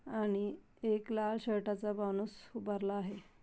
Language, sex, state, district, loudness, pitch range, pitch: Marathi, female, Maharashtra, Aurangabad, -38 LUFS, 200-215 Hz, 210 Hz